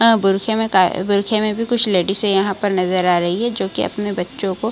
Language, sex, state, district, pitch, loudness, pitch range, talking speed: Hindi, female, Bihar, Kishanganj, 200 Hz, -18 LUFS, 185-215 Hz, 265 wpm